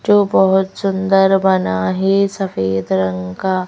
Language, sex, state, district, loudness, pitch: Hindi, female, Madhya Pradesh, Bhopal, -16 LUFS, 190 Hz